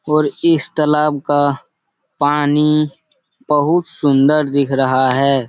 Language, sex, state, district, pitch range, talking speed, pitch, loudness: Hindi, male, Bihar, Supaul, 140-150 Hz, 120 wpm, 145 Hz, -15 LUFS